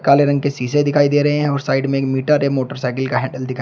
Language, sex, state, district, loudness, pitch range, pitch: Hindi, male, Uttar Pradesh, Shamli, -17 LUFS, 130-145 Hz, 140 Hz